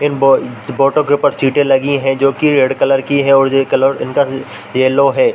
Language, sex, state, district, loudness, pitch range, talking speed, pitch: Hindi, male, Chhattisgarh, Korba, -13 LUFS, 135-145 Hz, 215 wpm, 135 Hz